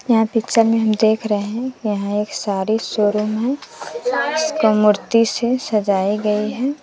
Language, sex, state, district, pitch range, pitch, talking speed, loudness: Hindi, female, Bihar, West Champaran, 210-245 Hz, 220 Hz, 160 wpm, -18 LUFS